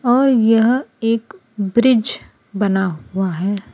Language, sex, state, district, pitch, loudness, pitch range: Hindi, female, Gujarat, Valsad, 225 Hz, -17 LUFS, 195-240 Hz